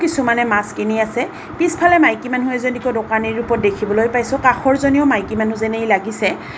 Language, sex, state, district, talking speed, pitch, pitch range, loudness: Assamese, female, Assam, Kamrup Metropolitan, 155 wpm, 235 Hz, 220-260 Hz, -17 LUFS